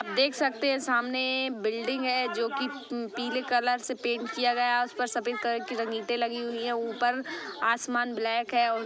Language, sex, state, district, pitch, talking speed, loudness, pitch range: Hindi, female, Chhattisgarh, Bastar, 245 Hz, 190 wpm, -29 LUFS, 235-255 Hz